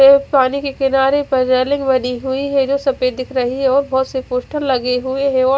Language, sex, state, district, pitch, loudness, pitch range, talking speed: Hindi, female, Odisha, Khordha, 265 Hz, -16 LUFS, 255-275 Hz, 225 wpm